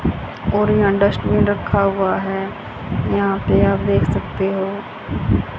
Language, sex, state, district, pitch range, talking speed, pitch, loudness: Hindi, female, Haryana, Charkhi Dadri, 170-200 Hz, 130 wpm, 195 Hz, -18 LUFS